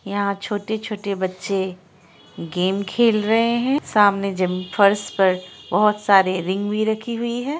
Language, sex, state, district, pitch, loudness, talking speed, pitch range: Hindi, female, Bihar, Araria, 200 Hz, -20 LUFS, 160 wpm, 185-220 Hz